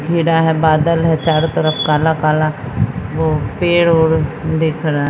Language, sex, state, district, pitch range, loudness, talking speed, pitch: Hindi, female, Bihar, Patna, 155-165 Hz, -15 LUFS, 140 wpm, 160 Hz